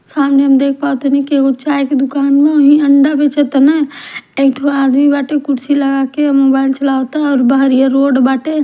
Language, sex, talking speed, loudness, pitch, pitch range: Bhojpuri, female, 165 wpm, -11 LUFS, 280 Hz, 270-290 Hz